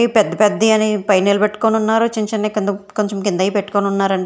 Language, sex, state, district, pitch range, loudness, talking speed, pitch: Telugu, female, Telangana, Hyderabad, 200-215 Hz, -16 LUFS, 185 wpm, 210 Hz